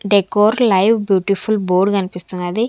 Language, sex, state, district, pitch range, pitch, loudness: Telugu, female, Andhra Pradesh, Sri Satya Sai, 185-215 Hz, 200 Hz, -16 LUFS